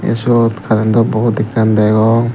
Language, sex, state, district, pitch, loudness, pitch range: Chakma, male, Tripura, Dhalai, 110 Hz, -13 LUFS, 110-115 Hz